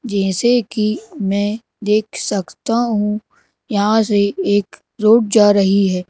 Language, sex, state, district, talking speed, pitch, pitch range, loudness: Hindi, male, Madhya Pradesh, Bhopal, 130 wpm, 210 Hz, 200-220 Hz, -16 LUFS